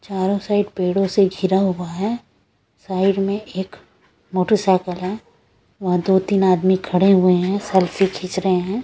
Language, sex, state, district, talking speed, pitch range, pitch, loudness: Hindi, female, Bihar, West Champaran, 150 wpm, 185-195 Hz, 190 Hz, -19 LUFS